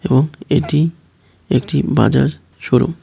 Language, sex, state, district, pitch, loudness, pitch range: Bengali, male, Tripura, West Tripura, 155 Hz, -16 LUFS, 145-170 Hz